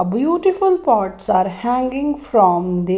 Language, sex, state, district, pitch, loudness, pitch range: English, female, Maharashtra, Mumbai Suburban, 230 Hz, -17 LUFS, 185-290 Hz